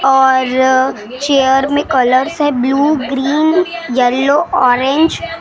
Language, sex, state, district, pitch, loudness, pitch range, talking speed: Hindi, female, Maharashtra, Gondia, 270 Hz, -13 LUFS, 260-300 Hz, 110 wpm